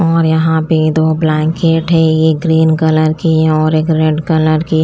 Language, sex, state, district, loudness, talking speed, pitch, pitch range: Hindi, female, Chandigarh, Chandigarh, -12 LUFS, 185 wpm, 160 Hz, 155-160 Hz